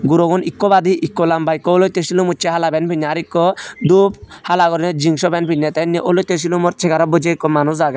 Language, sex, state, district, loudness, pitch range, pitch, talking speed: Chakma, male, Tripura, Unakoti, -15 LUFS, 165-180 Hz, 170 Hz, 220 wpm